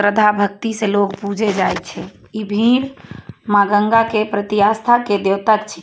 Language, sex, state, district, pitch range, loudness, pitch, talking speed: Maithili, female, Bihar, Begusarai, 205-220 Hz, -16 LUFS, 210 Hz, 165 wpm